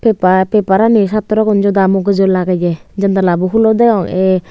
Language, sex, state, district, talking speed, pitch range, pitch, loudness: Chakma, female, Tripura, Unakoti, 145 wpm, 185-215 Hz, 195 Hz, -12 LUFS